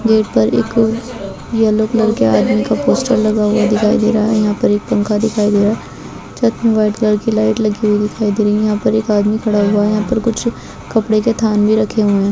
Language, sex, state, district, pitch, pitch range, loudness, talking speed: Hindi, female, Bihar, Kishanganj, 215 Hz, 210-220 Hz, -14 LUFS, 255 wpm